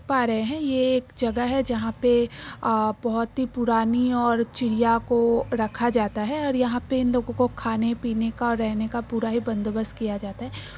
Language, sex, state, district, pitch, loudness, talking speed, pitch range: Hindi, female, Uttar Pradesh, Jyotiba Phule Nagar, 235 Hz, -24 LUFS, 205 wpm, 225-245 Hz